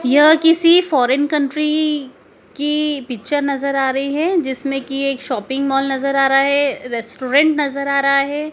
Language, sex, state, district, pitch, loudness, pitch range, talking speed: Hindi, female, Madhya Pradesh, Dhar, 275 Hz, -16 LUFS, 270-300 Hz, 170 wpm